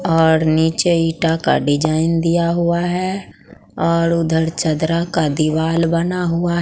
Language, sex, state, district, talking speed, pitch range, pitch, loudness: Hindi, female, Bihar, Katihar, 135 wpm, 160-170 Hz, 165 Hz, -17 LUFS